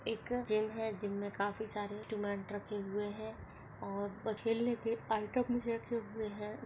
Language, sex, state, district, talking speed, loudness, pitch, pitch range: Hindi, female, Chhattisgarh, Jashpur, 145 wpm, -38 LUFS, 215 Hz, 205-225 Hz